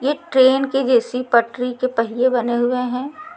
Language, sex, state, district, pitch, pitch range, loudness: Hindi, female, Chhattisgarh, Raipur, 250 Hz, 245-270 Hz, -18 LUFS